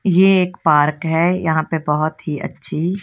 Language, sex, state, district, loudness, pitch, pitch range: Hindi, female, Punjab, Kapurthala, -17 LUFS, 160 Hz, 155-185 Hz